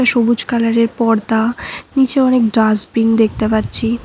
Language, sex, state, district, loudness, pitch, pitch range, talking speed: Bengali, female, West Bengal, Cooch Behar, -14 LUFS, 230 Hz, 225-240 Hz, 120 wpm